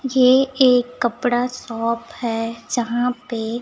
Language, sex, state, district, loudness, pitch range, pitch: Hindi, male, Chhattisgarh, Raipur, -20 LUFS, 230-250 Hz, 245 Hz